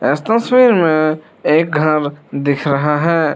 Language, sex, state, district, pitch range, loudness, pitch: Hindi, male, Arunachal Pradesh, Lower Dibang Valley, 150-170 Hz, -14 LUFS, 155 Hz